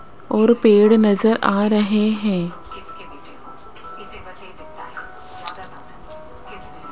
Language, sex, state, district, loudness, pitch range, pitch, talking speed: Hindi, female, Rajasthan, Jaipur, -17 LUFS, 190-220 Hz, 210 Hz, 50 wpm